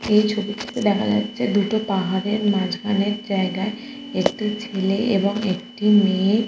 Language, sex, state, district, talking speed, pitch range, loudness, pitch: Bengali, female, West Bengal, Kolkata, 120 wpm, 195-215 Hz, -21 LUFS, 205 Hz